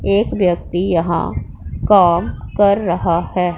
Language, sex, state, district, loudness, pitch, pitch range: Hindi, female, Punjab, Pathankot, -16 LUFS, 180 Hz, 170-200 Hz